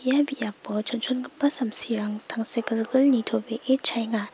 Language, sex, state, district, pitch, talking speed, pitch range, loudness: Garo, female, Meghalaya, West Garo Hills, 230 Hz, 95 wpm, 225-260 Hz, -22 LUFS